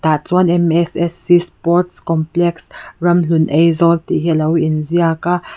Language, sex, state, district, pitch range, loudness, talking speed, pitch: Mizo, female, Mizoram, Aizawl, 160-175 Hz, -15 LUFS, 130 wpm, 170 Hz